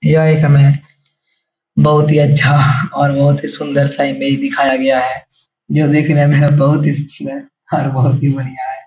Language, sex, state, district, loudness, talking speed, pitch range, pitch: Hindi, male, Bihar, Jahanabad, -13 LUFS, 175 wpm, 140-150 Hz, 145 Hz